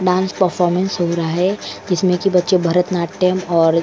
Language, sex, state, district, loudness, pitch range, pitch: Hindi, female, Goa, North and South Goa, -17 LUFS, 175-185 Hz, 180 Hz